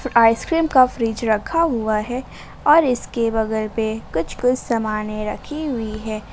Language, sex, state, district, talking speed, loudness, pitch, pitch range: Hindi, female, Jharkhand, Ranchi, 150 wpm, -20 LUFS, 230 Hz, 220-255 Hz